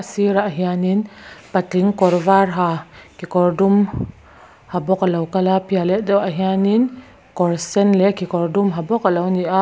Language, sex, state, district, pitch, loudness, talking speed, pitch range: Mizo, female, Mizoram, Aizawl, 190 Hz, -18 LUFS, 195 wpm, 180-200 Hz